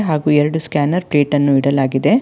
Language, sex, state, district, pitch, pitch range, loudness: Kannada, female, Karnataka, Bangalore, 145 Hz, 140-160 Hz, -15 LUFS